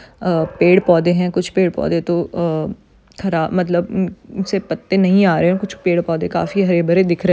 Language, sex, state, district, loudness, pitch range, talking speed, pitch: Hindi, female, Maharashtra, Dhule, -17 LUFS, 170-190 Hz, 215 wpm, 180 Hz